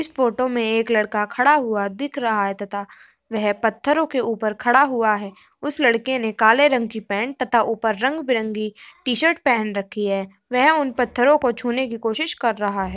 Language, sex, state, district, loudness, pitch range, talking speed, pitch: Hindi, female, Uttar Pradesh, Hamirpur, -20 LUFS, 215-260 Hz, 195 wpm, 230 Hz